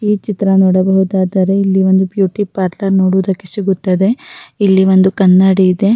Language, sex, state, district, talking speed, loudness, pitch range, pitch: Kannada, female, Karnataka, Raichur, 130 wpm, -12 LUFS, 190-200 Hz, 190 Hz